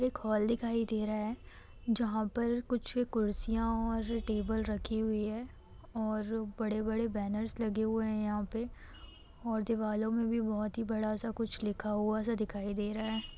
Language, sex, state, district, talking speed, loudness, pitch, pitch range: Maithili, female, Bihar, Supaul, 180 wpm, -35 LUFS, 220 Hz, 215-230 Hz